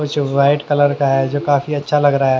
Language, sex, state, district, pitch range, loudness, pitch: Hindi, male, Haryana, Charkhi Dadri, 140-145 Hz, -16 LUFS, 145 Hz